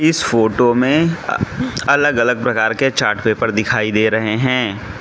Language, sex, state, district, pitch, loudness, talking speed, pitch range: Hindi, male, Mizoram, Aizawl, 120 Hz, -16 LUFS, 155 wpm, 110-130 Hz